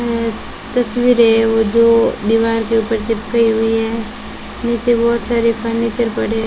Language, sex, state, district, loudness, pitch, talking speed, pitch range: Hindi, female, Rajasthan, Bikaner, -15 LUFS, 230 Hz, 150 wpm, 225-235 Hz